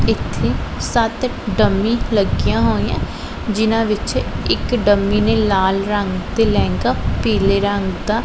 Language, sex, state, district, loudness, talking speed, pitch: Punjabi, female, Punjab, Pathankot, -18 LUFS, 125 wpm, 200 Hz